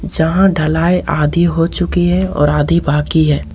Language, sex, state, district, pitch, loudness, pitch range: Hindi, male, Jharkhand, Ranchi, 165 Hz, -14 LUFS, 150-175 Hz